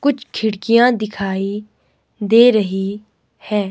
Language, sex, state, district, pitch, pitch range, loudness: Hindi, male, Himachal Pradesh, Shimla, 210 Hz, 200-230 Hz, -16 LUFS